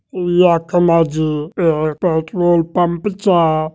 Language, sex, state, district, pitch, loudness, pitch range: Hindi, male, Uttarakhand, Tehri Garhwal, 170 Hz, -15 LUFS, 160-180 Hz